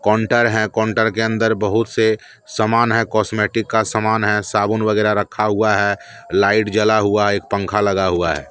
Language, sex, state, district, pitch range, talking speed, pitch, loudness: Hindi, male, Jharkhand, Deoghar, 105-110 Hz, 185 wpm, 110 Hz, -17 LUFS